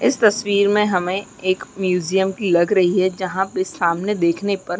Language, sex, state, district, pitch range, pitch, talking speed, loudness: Hindi, female, Uttarakhand, Uttarkashi, 180-200 Hz, 190 Hz, 200 wpm, -19 LUFS